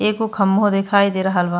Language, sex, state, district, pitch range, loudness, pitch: Bhojpuri, female, Uttar Pradesh, Ghazipur, 190-210 Hz, -17 LUFS, 195 Hz